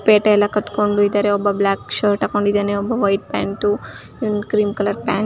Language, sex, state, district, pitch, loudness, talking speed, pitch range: Kannada, female, Karnataka, Chamarajanagar, 205 Hz, -18 LUFS, 170 wpm, 205-210 Hz